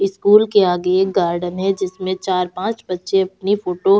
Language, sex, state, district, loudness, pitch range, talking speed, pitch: Hindi, female, Uttar Pradesh, Jalaun, -18 LUFS, 180-195 Hz, 180 wpm, 190 Hz